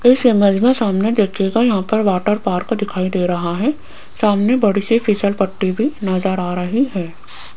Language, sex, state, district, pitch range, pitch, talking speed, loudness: Hindi, female, Rajasthan, Jaipur, 185-225 Hz, 200 Hz, 180 wpm, -17 LUFS